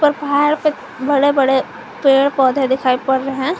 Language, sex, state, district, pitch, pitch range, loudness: Hindi, female, Jharkhand, Garhwa, 275 Hz, 265-290 Hz, -16 LUFS